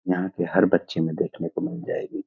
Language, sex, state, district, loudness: Hindi, male, Bihar, Saharsa, -25 LUFS